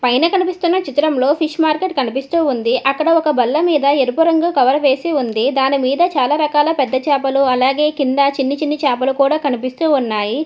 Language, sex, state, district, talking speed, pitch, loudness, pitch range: Telugu, female, Telangana, Hyderabad, 170 wpm, 280 Hz, -15 LUFS, 265-310 Hz